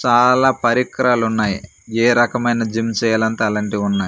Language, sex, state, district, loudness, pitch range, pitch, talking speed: Telugu, male, Andhra Pradesh, Manyam, -17 LUFS, 110-120 Hz, 115 Hz, 105 wpm